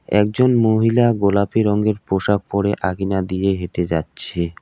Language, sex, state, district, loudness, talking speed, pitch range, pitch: Bengali, male, West Bengal, Alipurduar, -18 LUFS, 130 wpm, 95-105 Hz, 100 Hz